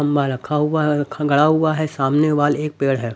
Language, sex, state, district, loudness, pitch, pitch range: Hindi, male, Haryana, Rohtak, -18 LUFS, 150 Hz, 140-150 Hz